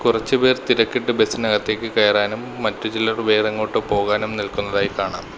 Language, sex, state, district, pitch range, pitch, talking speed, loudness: Malayalam, male, Kerala, Kollam, 105-110 Hz, 110 Hz, 110 wpm, -20 LUFS